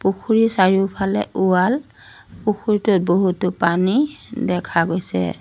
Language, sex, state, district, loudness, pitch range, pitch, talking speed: Assamese, female, Assam, Sonitpur, -19 LUFS, 180-215 Hz, 190 Hz, 90 wpm